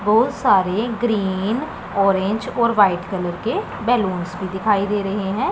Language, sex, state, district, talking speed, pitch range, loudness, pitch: Hindi, female, Punjab, Pathankot, 150 wpm, 190-225 Hz, -20 LUFS, 200 Hz